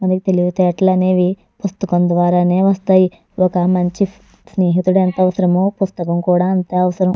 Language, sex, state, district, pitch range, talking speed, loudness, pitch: Telugu, female, Andhra Pradesh, Chittoor, 180-190 Hz, 125 wpm, -15 LUFS, 185 Hz